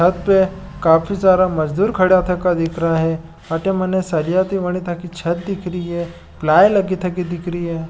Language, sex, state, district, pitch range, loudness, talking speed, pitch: Marwari, male, Rajasthan, Nagaur, 165-185 Hz, -18 LUFS, 175 wpm, 180 Hz